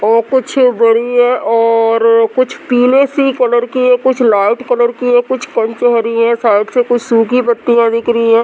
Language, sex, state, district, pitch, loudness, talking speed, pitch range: Hindi, female, Bihar, Muzaffarpur, 240 Hz, -11 LUFS, 205 wpm, 230-250 Hz